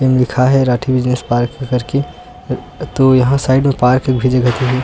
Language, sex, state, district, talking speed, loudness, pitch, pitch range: Chhattisgarhi, male, Chhattisgarh, Sukma, 200 wpm, -14 LUFS, 130 Hz, 125-130 Hz